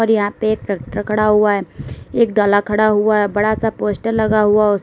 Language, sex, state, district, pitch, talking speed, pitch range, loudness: Hindi, female, Uttar Pradesh, Lalitpur, 210 Hz, 235 wpm, 205-215 Hz, -16 LUFS